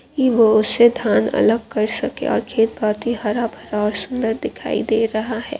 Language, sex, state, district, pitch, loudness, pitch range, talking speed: Hindi, female, Rajasthan, Churu, 225 Hz, -18 LUFS, 215-235 Hz, 75 wpm